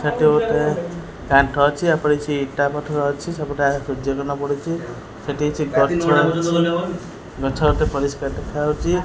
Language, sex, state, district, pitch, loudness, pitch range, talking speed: Odia, female, Odisha, Khordha, 150 Hz, -20 LUFS, 140-165 Hz, 135 wpm